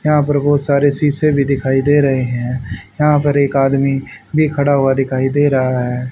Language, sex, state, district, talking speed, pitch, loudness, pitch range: Hindi, male, Haryana, Rohtak, 205 wpm, 140 Hz, -15 LUFS, 130-145 Hz